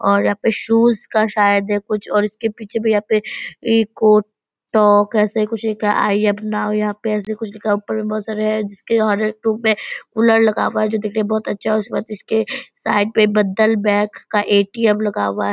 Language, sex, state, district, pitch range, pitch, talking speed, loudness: Hindi, female, Bihar, Purnia, 210-220 Hz, 215 Hz, 230 wpm, -17 LUFS